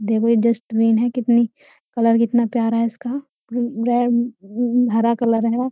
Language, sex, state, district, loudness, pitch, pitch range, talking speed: Hindi, female, Uttar Pradesh, Jyotiba Phule Nagar, -19 LUFS, 235 Hz, 230-245 Hz, 170 wpm